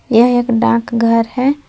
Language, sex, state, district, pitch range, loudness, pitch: Hindi, female, Jharkhand, Palamu, 230-245 Hz, -13 LUFS, 235 Hz